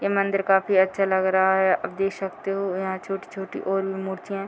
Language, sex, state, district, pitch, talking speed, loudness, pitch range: Hindi, female, Bihar, Muzaffarpur, 195 Hz, 230 wpm, -24 LUFS, 190-195 Hz